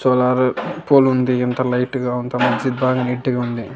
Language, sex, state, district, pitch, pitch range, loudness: Telugu, male, Andhra Pradesh, Annamaya, 125 Hz, 125-130 Hz, -18 LUFS